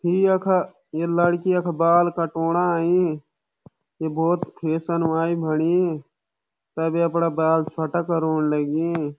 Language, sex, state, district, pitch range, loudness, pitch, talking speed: Garhwali, male, Uttarakhand, Uttarkashi, 160-175 Hz, -22 LUFS, 165 Hz, 130 wpm